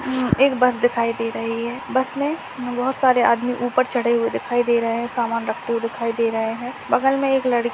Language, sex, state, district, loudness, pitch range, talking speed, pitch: Hindi, male, Maharashtra, Nagpur, -21 LUFS, 235-255 Hz, 225 wpm, 245 Hz